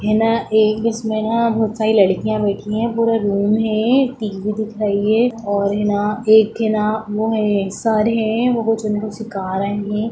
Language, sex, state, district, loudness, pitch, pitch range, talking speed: Hindi, male, Bihar, Gaya, -18 LUFS, 215 Hz, 210-225 Hz, 195 wpm